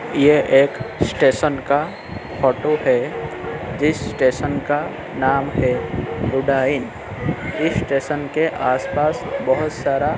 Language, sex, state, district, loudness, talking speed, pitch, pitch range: Hindi, male, Uttar Pradesh, Etah, -19 LUFS, 110 wpm, 140 Hz, 130-150 Hz